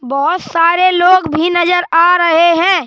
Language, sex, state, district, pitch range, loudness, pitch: Hindi, male, Madhya Pradesh, Bhopal, 330-360 Hz, -11 LUFS, 345 Hz